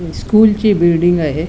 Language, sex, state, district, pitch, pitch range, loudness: Marathi, female, Goa, North and South Goa, 175 Hz, 170-210 Hz, -12 LUFS